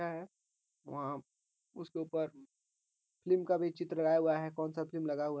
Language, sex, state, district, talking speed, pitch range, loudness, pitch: Hindi, male, Bihar, Gopalganj, 190 wpm, 155-170 Hz, -36 LUFS, 160 Hz